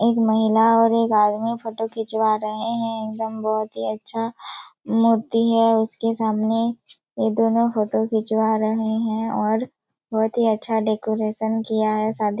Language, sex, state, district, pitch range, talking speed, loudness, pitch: Hindi, female, Chhattisgarh, Raigarh, 220-225 Hz, 150 wpm, -21 LUFS, 220 Hz